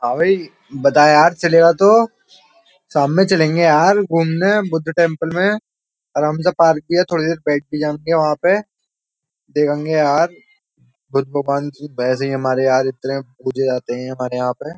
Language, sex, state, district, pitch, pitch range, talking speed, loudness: Hindi, male, Uttar Pradesh, Jyotiba Phule Nagar, 155 Hz, 135-175 Hz, 165 wpm, -16 LUFS